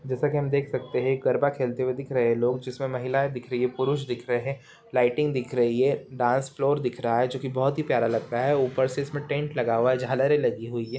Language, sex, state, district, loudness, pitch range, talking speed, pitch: Hindi, male, Bihar, Saran, -26 LUFS, 125-140 Hz, 265 wpm, 130 Hz